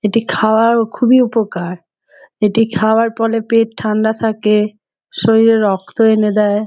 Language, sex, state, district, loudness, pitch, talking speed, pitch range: Bengali, female, West Bengal, Jhargram, -14 LUFS, 220 Hz, 125 wpm, 210-225 Hz